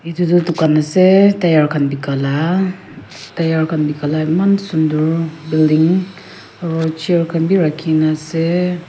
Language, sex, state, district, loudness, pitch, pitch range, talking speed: Nagamese, female, Nagaland, Kohima, -15 LUFS, 165 Hz, 155-175 Hz, 140 wpm